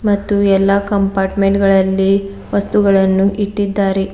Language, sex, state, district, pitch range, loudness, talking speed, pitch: Kannada, female, Karnataka, Bidar, 195-200 Hz, -14 LUFS, 85 wpm, 195 Hz